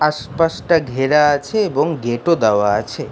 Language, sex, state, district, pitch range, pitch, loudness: Bengali, male, West Bengal, Jhargram, 120-165 Hz, 145 Hz, -17 LUFS